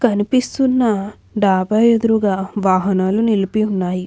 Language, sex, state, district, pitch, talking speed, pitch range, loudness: Telugu, female, Andhra Pradesh, Anantapur, 205 Hz, 90 wpm, 190-225 Hz, -16 LUFS